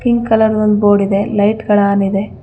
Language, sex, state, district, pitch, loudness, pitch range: Kannada, female, Karnataka, Bangalore, 205 Hz, -13 LUFS, 200-220 Hz